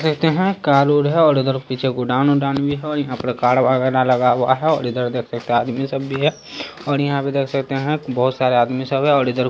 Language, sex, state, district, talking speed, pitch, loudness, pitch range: Hindi, male, Bihar, Saharsa, 280 wpm, 135 Hz, -18 LUFS, 125-145 Hz